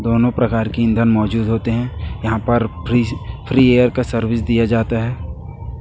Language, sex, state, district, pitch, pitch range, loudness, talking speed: Hindi, male, Chhattisgarh, Raipur, 115 Hz, 110-120 Hz, -17 LUFS, 165 wpm